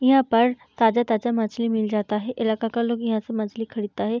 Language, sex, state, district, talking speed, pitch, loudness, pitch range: Hindi, female, Bihar, Darbhanga, 215 wpm, 225 Hz, -23 LUFS, 220-235 Hz